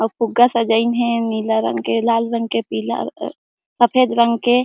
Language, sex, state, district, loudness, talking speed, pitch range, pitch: Chhattisgarhi, female, Chhattisgarh, Jashpur, -18 LUFS, 180 wpm, 220-235 Hz, 230 Hz